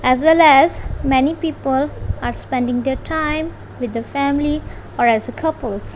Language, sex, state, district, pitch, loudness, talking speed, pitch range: English, female, Punjab, Kapurthala, 280 Hz, -17 LUFS, 160 wpm, 255-315 Hz